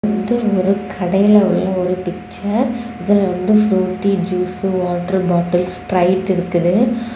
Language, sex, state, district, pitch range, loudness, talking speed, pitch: Tamil, female, Tamil Nadu, Kanyakumari, 180-205 Hz, -16 LUFS, 115 wpm, 190 Hz